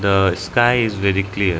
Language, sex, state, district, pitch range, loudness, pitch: English, male, Arunachal Pradesh, Lower Dibang Valley, 95-105 Hz, -17 LUFS, 100 Hz